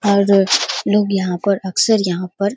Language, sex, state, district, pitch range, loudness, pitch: Hindi, female, Bihar, Darbhanga, 185-200 Hz, -16 LUFS, 200 Hz